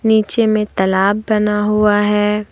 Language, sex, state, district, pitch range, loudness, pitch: Hindi, female, Jharkhand, Deoghar, 210-215 Hz, -15 LUFS, 210 Hz